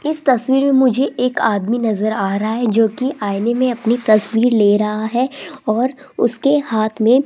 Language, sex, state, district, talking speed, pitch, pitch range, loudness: Hindi, female, Rajasthan, Jaipur, 190 wpm, 235 Hz, 220-260 Hz, -16 LUFS